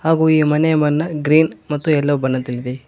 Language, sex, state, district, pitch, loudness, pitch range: Kannada, male, Karnataka, Koppal, 150 Hz, -17 LUFS, 130-155 Hz